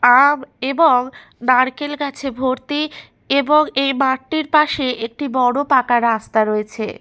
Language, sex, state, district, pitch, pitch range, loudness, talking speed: Bengali, female, West Bengal, Malda, 265 Hz, 250-290 Hz, -17 LUFS, 120 wpm